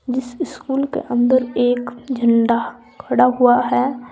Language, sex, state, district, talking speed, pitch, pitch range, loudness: Hindi, female, Uttar Pradesh, Saharanpur, 130 wpm, 250 Hz, 245-260 Hz, -18 LUFS